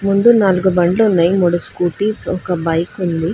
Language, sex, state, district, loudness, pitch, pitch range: Telugu, female, Telangana, Hyderabad, -15 LUFS, 180 Hz, 175-200 Hz